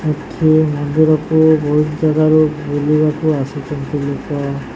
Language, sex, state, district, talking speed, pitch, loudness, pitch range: Odia, male, Odisha, Sambalpur, 90 wpm, 150 Hz, -15 LUFS, 145-155 Hz